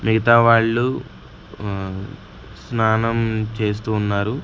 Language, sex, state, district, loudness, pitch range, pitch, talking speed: Telugu, male, Andhra Pradesh, Sri Satya Sai, -19 LUFS, 100-115 Hz, 110 Hz, 80 wpm